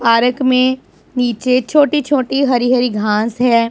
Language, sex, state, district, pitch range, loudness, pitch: Hindi, male, Punjab, Pathankot, 235-260 Hz, -14 LUFS, 250 Hz